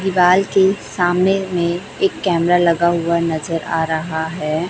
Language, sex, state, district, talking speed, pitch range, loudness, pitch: Hindi, female, Chhattisgarh, Raipur, 155 wpm, 165-185 Hz, -17 LUFS, 175 Hz